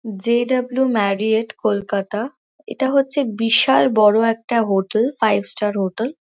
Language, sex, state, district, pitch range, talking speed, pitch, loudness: Bengali, female, West Bengal, Kolkata, 210-250 Hz, 125 wpm, 225 Hz, -18 LUFS